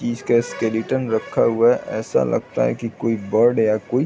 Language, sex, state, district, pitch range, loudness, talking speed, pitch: Hindi, male, Chhattisgarh, Raigarh, 110-120 Hz, -20 LUFS, 175 wpm, 115 Hz